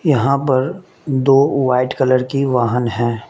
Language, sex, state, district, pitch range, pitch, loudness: Hindi, male, Mizoram, Aizawl, 125-140 Hz, 130 Hz, -16 LUFS